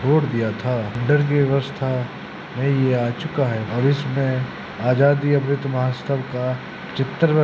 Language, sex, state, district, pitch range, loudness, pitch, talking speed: Hindi, male, Uttar Pradesh, Hamirpur, 125-140 Hz, -21 LUFS, 135 Hz, 155 wpm